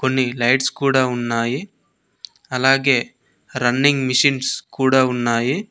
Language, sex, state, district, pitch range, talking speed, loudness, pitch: Telugu, male, Telangana, Mahabubabad, 125-135 Hz, 95 wpm, -18 LUFS, 130 Hz